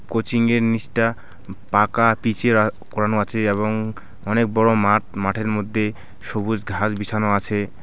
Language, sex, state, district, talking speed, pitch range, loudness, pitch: Bengali, male, West Bengal, Alipurduar, 140 wpm, 100-115 Hz, -20 LUFS, 105 Hz